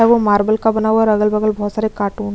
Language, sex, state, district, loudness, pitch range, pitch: Hindi, female, Chhattisgarh, Kabirdham, -16 LUFS, 210-220 Hz, 215 Hz